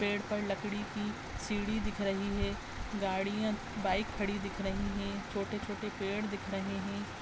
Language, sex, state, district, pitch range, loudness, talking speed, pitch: Hindi, female, Uttar Pradesh, Deoria, 195-210 Hz, -36 LUFS, 160 wpm, 205 Hz